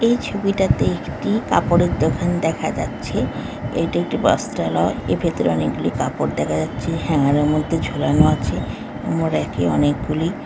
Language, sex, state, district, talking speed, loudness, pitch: Bengali, female, West Bengal, Jhargram, 150 wpm, -20 LUFS, 145 Hz